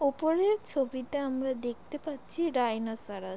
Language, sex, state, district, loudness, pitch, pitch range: Bengali, female, West Bengal, Jalpaiguri, -31 LUFS, 265 Hz, 240-300 Hz